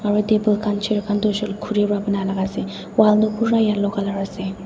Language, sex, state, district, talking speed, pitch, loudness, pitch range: Nagamese, female, Nagaland, Dimapur, 245 wpm, 205 Hz, -20 LUFS, 200-215 Hz